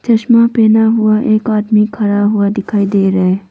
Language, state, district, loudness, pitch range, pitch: Hindi, Arunachal Pradesh, Papum Pare, -12 LUFS, 205-220 Hz, 215 Hz